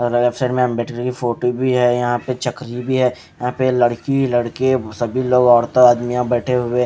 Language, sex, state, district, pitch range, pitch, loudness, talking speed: Hindi, male, Haryana, Charkhi Dadri, 120-125 Hz, 125 Hz, -17 LUFS, 210 wpm